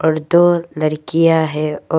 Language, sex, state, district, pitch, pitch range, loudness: Hindi, female, Arunachal Pradesh, Papum Pare, 160 Hz, 155-165 Hz, -15 LUFS